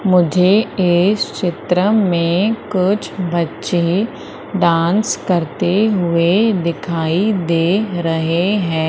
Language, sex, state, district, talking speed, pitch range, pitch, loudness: Hindi, female, Madhya Pradesh, Umaria, 90 wpm, 170-200 Hz, 180 Hz, -16 LUFS